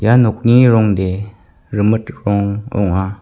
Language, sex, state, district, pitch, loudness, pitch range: Garo, male, Meghalaya, West Garo Hills, 105 Hz, -15 LUFS, 100-115 Hz